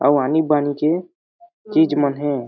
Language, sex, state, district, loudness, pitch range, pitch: Chhattisgarhi, male, Chhattisgarh, Jashpur, -19 LUFS, 145-175 Hz, 150 Hz